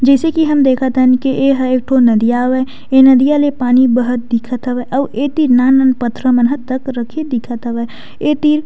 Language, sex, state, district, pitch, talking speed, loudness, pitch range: Chhattisgarhi, female, Chhattisgarh, Sukma, 260 Hz, 185 wpm, -13 LUFS, 245-270 Hz